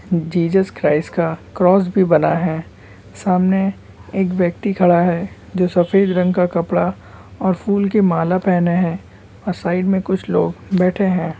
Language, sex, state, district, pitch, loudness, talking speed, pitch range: Hindi, male, West Bengal, Kolkata, 180 Hz, -17 LUFS, 160 wpm, 170-190 Hz